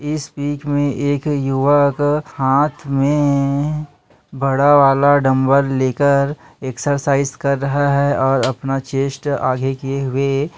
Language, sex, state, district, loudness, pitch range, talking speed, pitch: Hindi, male, Chhattisgarh, Kabirdham, -17 LUFS, 135-145 Hz, 125 wpm, 140 Hz